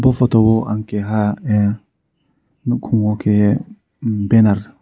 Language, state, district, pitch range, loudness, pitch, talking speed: Kokborok, Tripura, Dhalai, 105-120 Hz, -17 LUFS, 110 Hz, 125 wpm